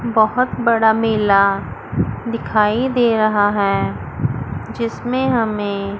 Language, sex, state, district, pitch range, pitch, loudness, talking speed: Hindi, female, Chandigarh, Chandigarh, 205-235 Hz, 220 Hz, -18 LUFS, 90 wpm